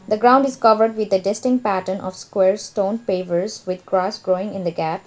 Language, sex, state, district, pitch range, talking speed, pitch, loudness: English, female, Sikkim, Gangtok, 185-215 Hz, 215 wpm, 195 Hz, -20 LUFS